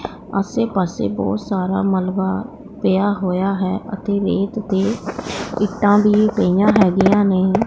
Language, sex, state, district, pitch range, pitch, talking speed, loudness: Punjabi, female, Punjab, Pathankot, 190-205 Hz, 195 Hz, 125 wpm, -18 LUFS